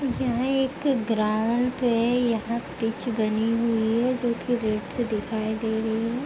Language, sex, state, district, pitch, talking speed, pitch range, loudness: Hindi, female, Uttar Pradesh, Hamirpur, 230 Hz, 165 wpm, 220-245 Hz, -25 LUFS